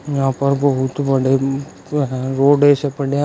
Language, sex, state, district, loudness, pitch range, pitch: Hindi, male, Uttar Pradesh, Shamli, -17 LUFS, 135-145 Hz, 140 Hz